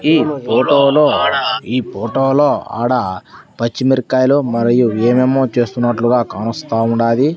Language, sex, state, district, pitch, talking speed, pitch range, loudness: Telugu, male, Andhra Pradesh, Sri Satya Sai, 125 Hz, 115 wpm, 115-135 Hz, -15 LUFS